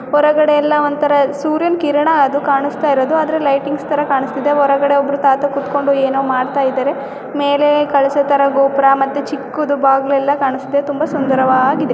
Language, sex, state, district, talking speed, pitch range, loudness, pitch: Kannada, female, Karnataka, Dakshina Kannada, 130 wpm, 275-290 Hz, -14 LUFS, 280 Hz